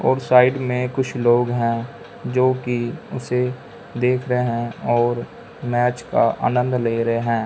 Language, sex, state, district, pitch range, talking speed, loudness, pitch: Hindi, male, Punjab, Fazilka, 120-125 Hz, 145 wpm, -20 LUFS, 125 Hz